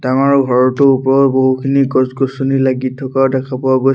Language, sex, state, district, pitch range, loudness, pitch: Assamese, male, Assam, Sonitpur, 130-135 Hz, -13 LUFS, 130 Hz